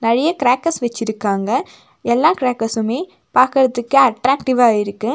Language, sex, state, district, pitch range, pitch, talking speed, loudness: Tamil, female, Tamil Nadu, Nilgiris, 225-265 Hz, 245 Hz, 95 wpm, -16 LUFS